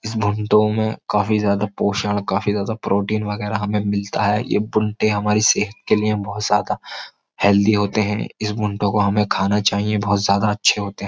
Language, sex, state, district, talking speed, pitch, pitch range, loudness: Hindi, male, Uttar Pradesh, Jyotiba Phule Nagar, 190 wpm, 105 Hz, 100-105 Hz, -19 LUFS